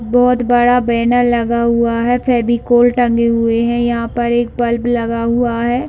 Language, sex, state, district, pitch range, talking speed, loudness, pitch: Hindi, female, Jharkhand, Sahebganj, 235-245 Hz, 175 wpm, -14 LUFS, 235 Hz